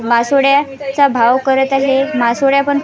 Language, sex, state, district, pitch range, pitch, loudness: Marathi, female, Maharashtra, Washim, 255-280 Hz, 270 Hz, -13 LUFS